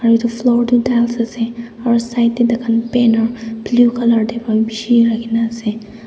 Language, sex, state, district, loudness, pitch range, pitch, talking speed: Nagamese, female, Nagaland, Dimapur, -15 LUFS, 225-235 Hz, 230 Hz, 180 wpm